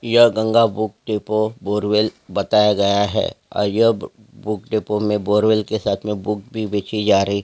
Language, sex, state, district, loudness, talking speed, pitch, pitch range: Hindi, male, Chhattisgarh, Jashpur, -19 LUFS, 185 wpm, 105 Hz, 105-110 Hz